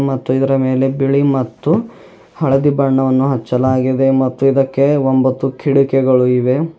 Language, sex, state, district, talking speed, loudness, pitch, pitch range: Kannada, male, Karnataka, Bidar, 115 wpm, -14 LUFS, 135 Hz, 130-140 Hz